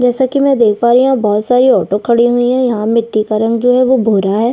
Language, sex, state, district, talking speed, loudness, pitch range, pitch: Hindi, female, Chhattisgarh, Sukma, 280 wpm, -12 LUFS, 215-255 Hz, 235 Hz